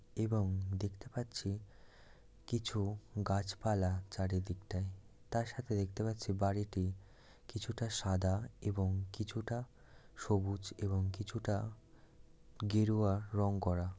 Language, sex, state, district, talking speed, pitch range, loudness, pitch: Bengali, male, West Bengal, Dakshin Dinajpur, 90 wpm, 95-110 Hz, -38 LUFS, 105 Hz